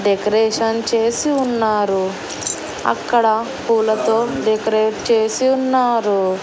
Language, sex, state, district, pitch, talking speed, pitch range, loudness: Telugu, female, Andhra Pradesh, Annamaya, 220 Hz, 75 wpm, 215-235 Hz, -17 LUFS